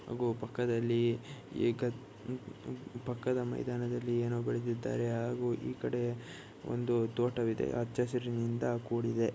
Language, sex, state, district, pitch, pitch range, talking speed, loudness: Kannada, male, Karnataka, Shimoga, 120 Hz, 115-125 Hz, 85 wpm, -35 LUFS